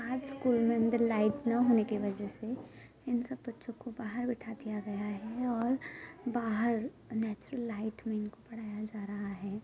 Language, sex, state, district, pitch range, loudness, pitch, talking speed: Hindi, female, Uttar Pradesh, Muzaffarnagar, 215-245 Hz, -34 LUFS, 230 Hz, 180 wpm